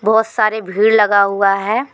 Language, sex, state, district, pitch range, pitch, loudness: Hindi, female, Jharkhand, Deoghar, 200-220 Hz, 215 Hz, -14 LUFS